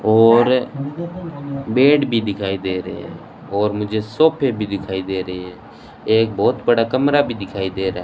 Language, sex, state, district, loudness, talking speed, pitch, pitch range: Hindi, male, Rajasthan, Bikaner, -18 LUFS, 180 wpm, 110 Hz, 95-135 Hz